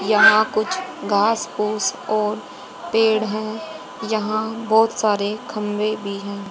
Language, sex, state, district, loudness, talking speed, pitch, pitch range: Hindi, female, Haryana, Jhajjar, -20 LUFS, 120 wpm, 215 Hz, 210-220 Hz